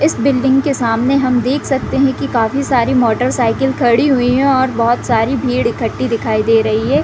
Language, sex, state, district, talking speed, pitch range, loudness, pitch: Hindi, female, Uttar Pradesh, Deoria, 205 wpm, 230-270 Hz, -14 LUFS, 255 Hz